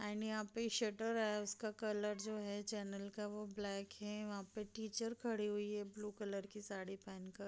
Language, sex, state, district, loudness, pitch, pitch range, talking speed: Hindi, female, Bihar, Madhepura, -44 LUFS, 210 Hz, 205-215 Hz, 225 wpm